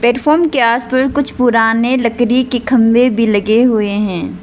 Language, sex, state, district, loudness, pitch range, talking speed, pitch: Hindi, female, Arunachal Pradesh, Lower Dibang Valley, -12 LUFS, 225-255 Hz, 150 wpm, 240 Hz